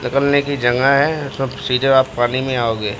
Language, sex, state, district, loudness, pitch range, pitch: Hindi, male, Uttar Pradesh, Deoria, -17 LUFS, 120-140 Hz, 130 Hz